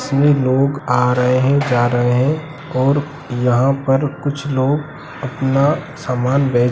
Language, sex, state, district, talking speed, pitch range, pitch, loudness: Hindi, male, Bihar, Sitamarhi, 150 wpm, 125-145 Hz, 135 Hz, -17 LUFS